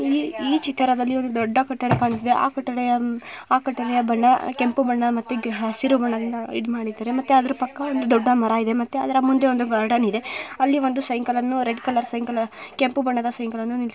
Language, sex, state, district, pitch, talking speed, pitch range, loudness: Kannada, female, Karnataka, Mysore, 245 Hz, 180 wpm, 235-265 Hz, -22 LUFS